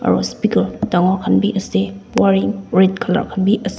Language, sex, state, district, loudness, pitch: Nagamese, female, Nagaland, Dimapur, -17 LUFS, 185 Hz